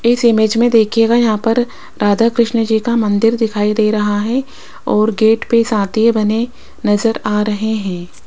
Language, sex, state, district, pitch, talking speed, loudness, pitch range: Hindi, female, Rajasthan, Jaipur, 220 Hz, 175 wpm, -14 LUFS, 210-230 Hz